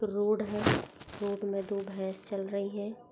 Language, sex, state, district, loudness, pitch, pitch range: Hindi, female, Chhattisgarh, Bastar, -33 LUFS, 205 Hz, 195-210 Hz